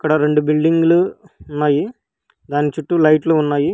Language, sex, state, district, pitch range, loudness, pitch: Telugu, female, Telangana, Hyderabad, 150-165 Hz, -16 LUFS, 155 Hz